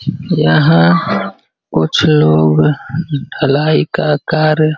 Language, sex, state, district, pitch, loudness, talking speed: Hindi, male, Uttar Pradesh, Varanasi, 140 Hz, -13 LUFS, 90 wpm